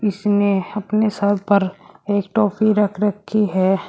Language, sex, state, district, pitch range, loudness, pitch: Hindi, female, Uttar Pradesh, Shamli, 195-210 Hz, -19 LUFS, 205 Hz